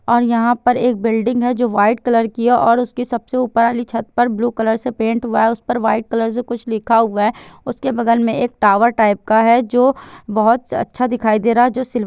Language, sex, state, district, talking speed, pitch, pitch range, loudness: Hindi, female, Chhattisgarh, Bilaspur, 255 wpm, 235 Hz, 225-245 Hz, -16 LUFS